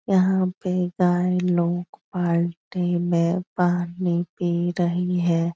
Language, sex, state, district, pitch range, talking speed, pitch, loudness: Hindi, female, Bihar, Supaul, 175-180 Hz, 110 wpm, 175 Hz, -23 LUFS